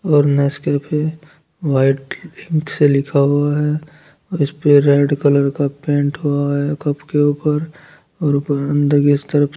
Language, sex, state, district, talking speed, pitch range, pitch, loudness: Hindi, male, Uttar Pradesh, Saharanpur, 150 wpm, 140-150 Hz, 145 Hz, -17 LUFS